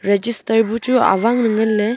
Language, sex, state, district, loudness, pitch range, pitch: Wancho, female, Arunachal Pradesh, Longding, -16 LUFS, 215-235 Hz, 225 Hz